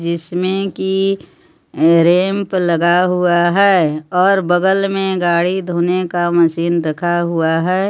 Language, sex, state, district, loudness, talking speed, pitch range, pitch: Hindi, female, Jharkhand, Palamu, -15 LUFS, 120 wpm, 170-190 Hz, 175 Hz